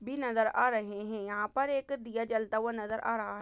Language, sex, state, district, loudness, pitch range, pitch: Hindi, female, Chhattisgarh, Bastar, -33 LUFS, 215-250 Hz, 225 Hz